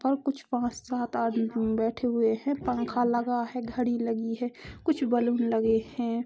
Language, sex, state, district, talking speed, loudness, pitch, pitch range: Hindi, female, Chhattisgarh, Korba, 175 wpm, -28 LUFS, 240 Hz, 230-245 Hz